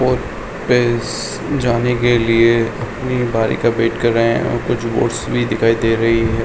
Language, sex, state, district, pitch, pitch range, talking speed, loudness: Hindi, male, Uttar Pradesh, Hamirpur, 115 Hz, 115-120 Hz, 185 wpm, -16 LUFS